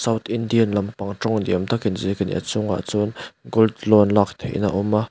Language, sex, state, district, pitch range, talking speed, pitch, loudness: Mizo, male, Mizoram, Aizawl, 100-110 Hz, 225 wpm, 105 Hz, -21 LUFS